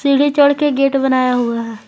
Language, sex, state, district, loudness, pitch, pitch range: Hindi, female, Jharkhand, Garhwa, -14 LUFS, 275 Hz, 245-285 Hz